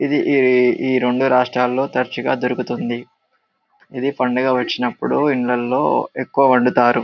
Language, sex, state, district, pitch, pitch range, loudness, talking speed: Telugu, male, Telangana, Karimnagar, 125 Hz, 125-130 Hz, -18 LUFS, 110 wpm